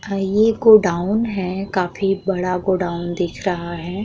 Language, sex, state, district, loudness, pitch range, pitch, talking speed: Hindi, female, Uttar Pradesh, Muzaffarnagar, -19 LUFS, 180-200 Hz, 190 Hz, 135 wpm